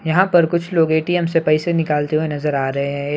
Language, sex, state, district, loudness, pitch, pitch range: Hindi, male, Bihar, Begusarai, -18 LUFS, 160 Hz, 150-170 Hz